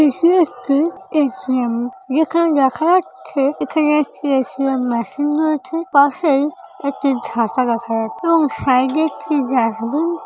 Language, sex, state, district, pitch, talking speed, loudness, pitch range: Bengali, female, West Bengal, Jhargram, 285 Hz, 140 wpm, -17 LUFS, 255-315 Hz